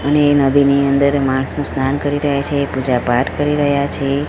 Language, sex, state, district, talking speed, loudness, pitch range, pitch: Gujarati, female, Gujarat, Gandhinagar, 195 wpm, -16 LUFS, 135-145 Hz, 140 Hz